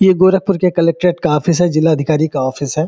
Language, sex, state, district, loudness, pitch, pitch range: Hindi, male, Uttar Pradesh, Gorakhpur, -14 LUFS, 170 Hz, 155-180 Hz